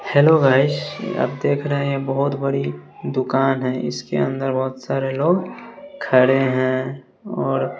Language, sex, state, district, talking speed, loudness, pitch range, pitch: Hindi, male, Bihar, West Champaran, 145 wpm, -20 LUFS, 130-140 Hz, 135 Hz